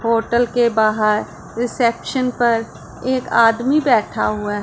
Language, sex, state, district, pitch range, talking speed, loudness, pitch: Hindi, female, Punjab, Pathankot, 220-245 Hz, 130 wpm, -18 LUFS, 235 Hz